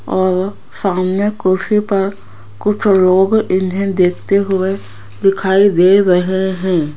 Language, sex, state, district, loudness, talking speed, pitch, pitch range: Hindi, female, Rajasthan, Jaipur, -14 LUFS, 110 wpm, 190 Hz, 185-195 Hz